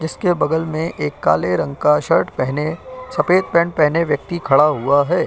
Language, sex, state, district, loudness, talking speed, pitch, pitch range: Hindi, male, Uttar Pradesh, Jyotiba Phule Nagar, -17 LUFS, 160 wpm, 155 Hz, 140-170 Hz